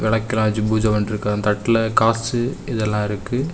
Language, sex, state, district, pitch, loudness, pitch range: Tamil, male, Tamil Nadu, Kanyakumari, 110 Hz, -20 LUFS, 105-115 Hz